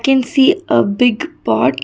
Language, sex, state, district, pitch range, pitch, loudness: English, female, Karnataka, Bangalore, 250-325 Hz, 270 Hz, -14 LUFS